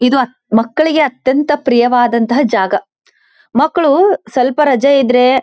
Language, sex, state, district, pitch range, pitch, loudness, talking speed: Kannada, female, Karnataka, Belgaum, 245-295 Hz, 260 Hz, -12 LUFS, 100 wpm